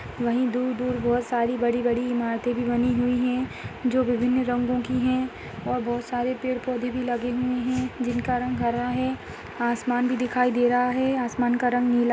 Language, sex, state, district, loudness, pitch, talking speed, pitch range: Hindi, female, Uttar Pradesh, Ghazipur, -25 LUFS, 245 Hz, 195 wpm, 240-250 Hz